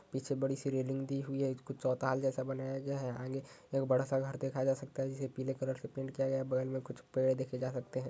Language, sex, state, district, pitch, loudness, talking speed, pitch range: Hindi, male, Uttar Pradesh, Ghazipur, 135 Hz, -37 LUFS, 280 wpm, 130-135 Hz